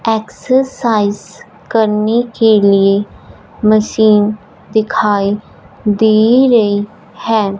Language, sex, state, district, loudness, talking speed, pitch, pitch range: Hindi, female, Punjab, Fazilka, -13 LUFS, 70 wpm, 215 Hz, 205-225 Hz